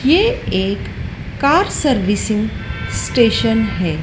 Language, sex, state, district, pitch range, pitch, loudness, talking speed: Hindi, female, Madhya Pradesh, Dhar, 205-285 Hz, 225 Hz, -17 LUFS, 90 wpm